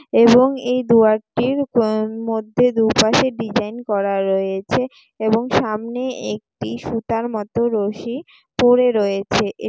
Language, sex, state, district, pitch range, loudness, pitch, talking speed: Bengali, female, West Bengal, Jalpaiguri, 215-245 Hz, -18 LUFS, 225 Hz, 120 wpm